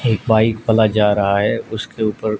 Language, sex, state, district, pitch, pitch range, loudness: Hindi, male, Gujarat, Gandhinagar, 110 Hz, 105-110 Hz, -17 LUFS